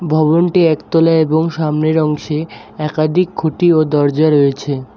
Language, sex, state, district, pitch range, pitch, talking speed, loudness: Bengali, male, West Bengal, Alipurduar, 150-165 Hz, 155 Hz, 120 wpm, -14 LUFS